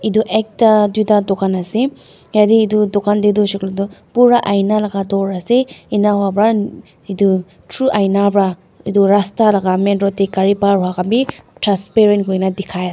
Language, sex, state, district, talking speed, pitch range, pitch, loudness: Nagamese, female, Nagaland, Dimapur, 185 wpm, 195-215 Hz, 200 Hz, -15 LUFS